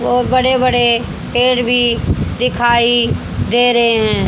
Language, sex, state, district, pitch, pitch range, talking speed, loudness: Hindi, female, Haryana, Jhajjar, 245 Hz, 235-250 Hz, 125 wpm, -13 LUFS